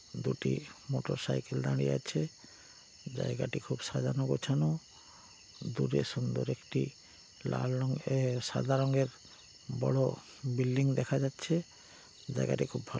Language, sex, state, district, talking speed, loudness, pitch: Bengali, male, West Bengal, Paschim Medinipur, 105 wpm, -34 LUFS, 105 Hz